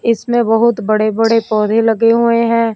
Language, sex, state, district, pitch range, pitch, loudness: Hindi, female, Punjab, Fazilka, 220-230 Hz, 230 Hz, -13 LUFS